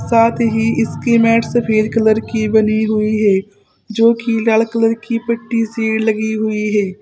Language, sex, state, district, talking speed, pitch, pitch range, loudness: Hindi, female, Uttar Pradesh, Saharanpur, 170 wpm, 225 Hz, 215-230 Hz, -15 LUFS